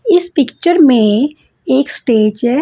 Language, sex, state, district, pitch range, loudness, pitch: Hindi, female, Punjab, Fazilka, 235-335 Hz, -12 LUFS, 270 Hz